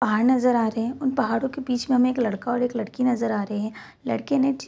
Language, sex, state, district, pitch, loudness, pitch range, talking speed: Hindi, female, Bihar, East Champaran, 245 Hz, -24 LUFS, 225-260 Hz, 320 wpm